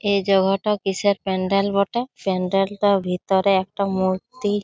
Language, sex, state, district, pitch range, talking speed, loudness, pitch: Bengali, female, West Bengal, Jalpaiguri, 190-205 Hz, 130 wpm, -21 LUFS, 195 Hz